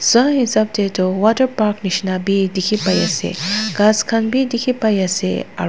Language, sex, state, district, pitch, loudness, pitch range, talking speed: Nagamese, female, Nagaland, Dimapur, 210 Hz, -17 LUFS, 190-225 Hz, 180 wpm